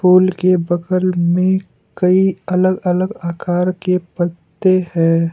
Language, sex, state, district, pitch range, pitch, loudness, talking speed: Hindi, male, Assam, Kamrup Metropolitan, 175-185 Hz, 180 Hz, -16 LUFS, 125 wpm